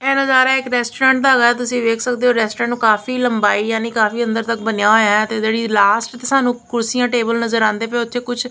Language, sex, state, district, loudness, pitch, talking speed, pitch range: Punjabi, female, Punjab, Kapurthala, -16 LUFS, 235 Hz, 220 wpm, 225-245 Hz